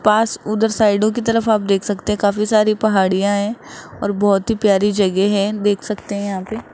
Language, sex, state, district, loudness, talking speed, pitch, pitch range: Hindi, male, Rajasthan, Jaipur, -17 LUFS, 215 wpm, 210 Hz, 200-215 Hz